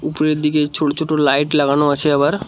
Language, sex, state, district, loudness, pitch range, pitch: Bengali, male, West Bengal, Cooch Behar, -16 LUFS, 145-155 Hz, 150 Hz